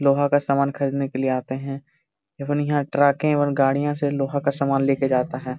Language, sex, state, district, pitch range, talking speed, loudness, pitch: Hindi, male, Jharkhand, Jamtara, 135-145 Hz, 205 wpm, -22 LUFS, 140 Hz